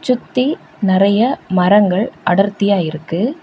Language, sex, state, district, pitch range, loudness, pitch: Tamil, female, Tamil Nadu, Kanyakumari, 185-245 Hz, -15 LUFS, 200 Hz